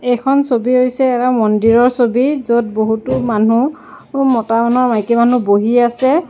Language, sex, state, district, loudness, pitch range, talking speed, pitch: Assamese, female, Assam, Sonitpur, -14 LUFS, 230-260 Hz, 145 wpm, 245 Hz